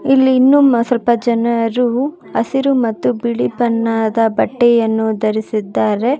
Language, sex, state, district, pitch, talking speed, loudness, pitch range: Kannada, female, Karnataka, Bangalore, 235 Hz, 95 wpm, -15 LUFS, 225-255 Hz